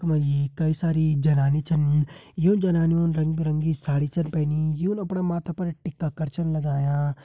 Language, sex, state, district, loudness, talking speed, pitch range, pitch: Hindi, male, Uttarakhand, Uttarkashi, -24 LUFS, 190 wpm, 150-170 Hz, 155 Hz